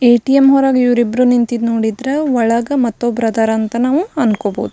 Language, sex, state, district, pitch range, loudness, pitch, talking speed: Kannada, female, Karnataka, Belgaum, 230-265 Hz, -14 LUFS, 240 Hz, 150 wpm